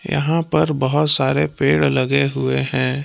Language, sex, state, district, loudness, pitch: Hindi, male, Jharkhand, Palamu, -17 LUFS, 130 Hz